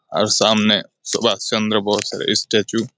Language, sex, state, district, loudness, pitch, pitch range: Bengali, male, West Bengal, Malda, -17 LUFS, 110 Hz, 105-110 Hz